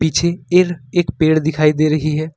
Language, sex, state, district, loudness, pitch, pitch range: Hindi, male, Jharkhand, Ranchi, -16 LUFS, 155 Hz, 155-170 Hz